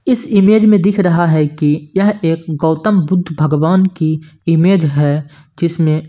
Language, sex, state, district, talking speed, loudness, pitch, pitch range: Hindi, male, Punjab, Kapurthala, 165 wpm, -13 LUFS, 165 Hz, 155-195 Hz